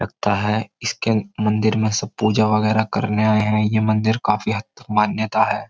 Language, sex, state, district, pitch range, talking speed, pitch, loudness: Hindi, male, Uttar Pradesh, Jyotiba Phule Nagar, 105-110 Hz, 190 wpm, 110 Hz, -20 LUFS